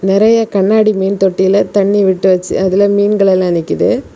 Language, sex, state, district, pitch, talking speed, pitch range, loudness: Tamil, female, Tamil Nadu, Kanyakumari, 195 Hz, 160 wpm, 190-205 Hz, -12 LUFS